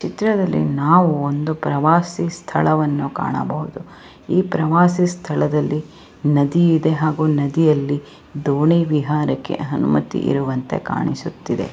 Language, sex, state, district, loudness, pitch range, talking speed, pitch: Kannada, female, Karnataka, Raichur, -19 LUFS, 145-170 Hz, 95 wpm, 155 Hz